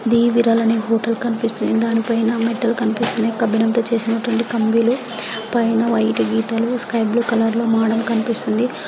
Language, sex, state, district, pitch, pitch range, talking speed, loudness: Telugu, female, Andhra Pradesh, Anantapur, 230 Hz, 225-235 Hz, 160 wpm, -18 LUFS